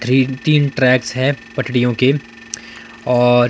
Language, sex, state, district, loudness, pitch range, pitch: Hindi, male, Himachal Pradesh, Shimla, -16 LUFS, 120-130 Hz, 125 Hz